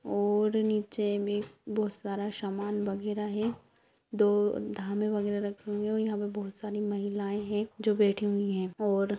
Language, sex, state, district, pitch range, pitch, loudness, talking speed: Hindi, female, Uttar Pradesh, Deoria, 205-210 Hz, 205 Hz, -31 LUFS, 165 wpm